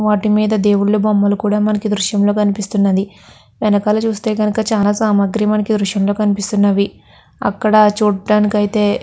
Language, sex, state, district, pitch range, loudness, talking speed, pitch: Telugu, female, Andhra Pradesh, Guntur, 205-215 Hz, -15 LUFS, 155 wpm, 210 Hz